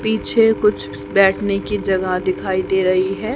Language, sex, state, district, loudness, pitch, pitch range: Hindi, female, Haryana, Charkhi Dadri, -17 LUFS, 190 Hz, 185-210 Hz